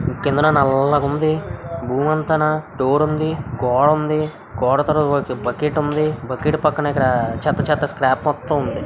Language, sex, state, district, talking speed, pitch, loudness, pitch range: Telugu, male, Andhra Pradesh, Visakhapatnam, 175 wpm, 145 Hz, -19 LUFS, 130-155 Hz